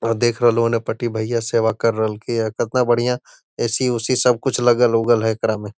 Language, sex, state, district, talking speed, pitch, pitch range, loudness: Magahi, male, Bihar, Gaya, 205 wpm, 115 Hz, 110-120 Hz, -19 LUFS